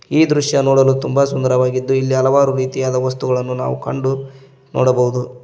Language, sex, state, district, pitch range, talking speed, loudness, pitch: Kannada, male, Karnataka, Koppal, 130-135 Hz, 130 wpm, -16 LUFS, 130 Hz